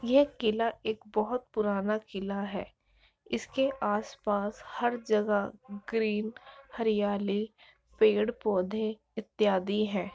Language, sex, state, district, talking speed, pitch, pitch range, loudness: Hindi, female, Bihar, Jahanabad, 100 wpm, 215 Hz, 205-225 Hz, -30 LUFS